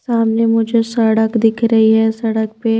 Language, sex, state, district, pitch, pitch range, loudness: Hindi, female, Maharashtra, Washim, 225 Hz, 220-230 Hz, -14 LUFS